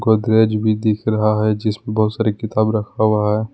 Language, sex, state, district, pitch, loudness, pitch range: Hindi, male, Jharkhand, Palamu, 110 Hz, -17 LUFS, 105-110 Hz